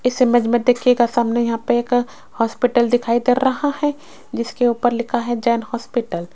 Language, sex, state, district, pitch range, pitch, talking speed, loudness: Hindi, female, Rajasthan, Jaipur, 235-250 Hz, 240 Hz, 190 wpm, -18 LUFS